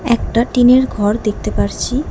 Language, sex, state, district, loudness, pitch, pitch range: Bengali, female, West Bengal, Alipurduar, -15 LUFS, 235 Hz, 205-250 Hz